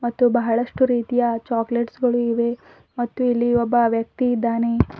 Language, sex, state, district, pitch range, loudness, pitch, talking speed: Kannada, female, Karnataka, Bidar, 235-245 Hz, -21 LUFS, 240 Hz, 130 wpm